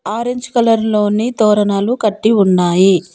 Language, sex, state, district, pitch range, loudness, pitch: Telugu, female, Telangana, Komaram Bheem, 200-225 Hz, -14 LUFS, 215 Hz